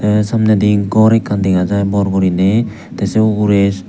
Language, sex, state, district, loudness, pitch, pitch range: Chakma, male, Tripura, Unakoti, -13 LUFS, 100 Hz, 100-110 Hz